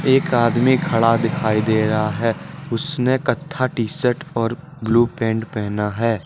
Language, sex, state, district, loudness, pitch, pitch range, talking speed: Hindi, male, Jharkhand, Deoghar, -19 LUFS, 115 Hz, 110-130 Hz, 145 wpm